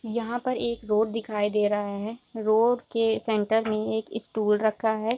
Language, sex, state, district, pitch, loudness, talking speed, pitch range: Hindi, female, Bihar, Supaul, 220 Hz, -26 LUFS, 195 wpm, 215-230 Hz